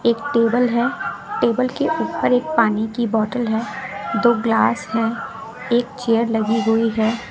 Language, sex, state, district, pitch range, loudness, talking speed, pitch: Hindi, female, Bihar, West Champaran, 225-245 Hz, -19 LUFS, 155 wpm, 230 Hz